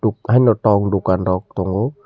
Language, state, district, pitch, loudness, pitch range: Kokborok, Tripura, Dhalai, 100 Hz, -17 LUFS, 95-115 Hz